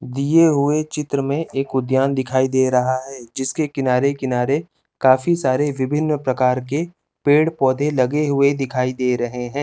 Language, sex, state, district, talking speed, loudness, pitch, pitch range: Hindi, male, Chandigarh, Chandigarh, 170 wpm, -19 LUFS, 135 Hz, 130-150 Hz